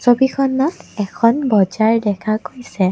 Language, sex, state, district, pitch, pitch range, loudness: Assamese, female, Assam, Kamrup Metropolitan, 225 Hz, 205-265 Hz, -17 LUFS